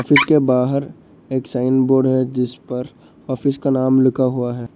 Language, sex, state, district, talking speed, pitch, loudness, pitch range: Hindi, male, Arunachal Pradesh, Lower Dibang Valley, 175 wpm, 130 Hz, -18 LUFS, 125-135 Hz